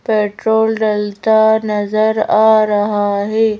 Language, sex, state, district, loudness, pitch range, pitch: Hindi, female, Madhya Pradesh, Bhopal, -14 LUFS, 210-220 Hz, 215 Hz